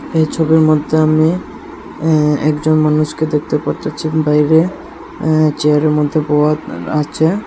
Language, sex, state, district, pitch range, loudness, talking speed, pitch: Bengali, male, Tripura, Unakoti, 150-160 Hz, -14 LUFS, 130 wpm, 155 Hz